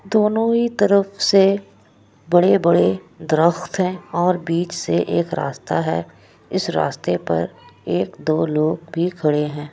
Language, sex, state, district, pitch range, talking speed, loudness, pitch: Hindi, female, Bihar, Kishanganj, 150-195 Hz, 130 wpm, -19 LUFS, 170 Hz